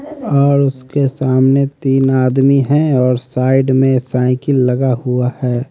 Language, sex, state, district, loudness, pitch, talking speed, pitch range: Hindi, male, Haryana, Rohtak, -14 LUFS, 130 Hz, 135 wpm, 125-140 Hz